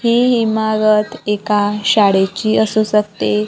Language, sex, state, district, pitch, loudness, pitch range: Marathi, female, Maharashtra, Gondia, 210 Hz, -15 LUFS, 205-220 Hz